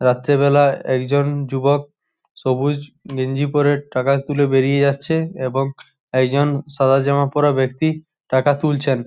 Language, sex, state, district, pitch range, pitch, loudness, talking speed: Bengali, male, West Bengal, Jhargram, 135-145 Hz, 140 Hz, -18 LUFS, 120 wpm